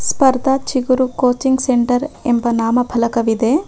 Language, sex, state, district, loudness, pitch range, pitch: Kannada, female, Karnataka, Bangalore, -16 LUFS, 235-265 Hz, 250 Hz